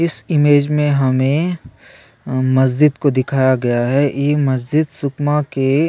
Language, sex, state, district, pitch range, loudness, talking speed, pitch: Hindi, male, Chhattisgarh, Sukma, 130-150 Hz, -16 LUFS, 145 wpm, 140 Hz